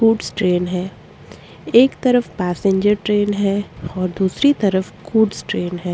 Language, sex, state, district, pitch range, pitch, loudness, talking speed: Hindi, female, Chhattisgarh, Korba, 185-220 Hz, 200 Hz, -18 LUFS, 140 wpm